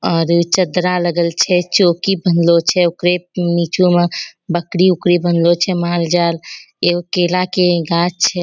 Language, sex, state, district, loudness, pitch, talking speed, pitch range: Angika, female, Bihar, Bhagalpur, -15 LUFS, 175 Hz, 140 wpm, 170-180 Hz